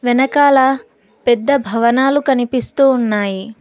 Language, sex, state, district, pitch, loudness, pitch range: Telugu, female, Telangana, Hyderabad, 255 Hz, -14 LUFS, 230-270 Hz